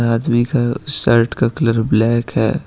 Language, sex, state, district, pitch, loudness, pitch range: Hindi, male, Jharkhand, Ranchi, 120 Hz, -16 LUFS, 115-120 Hz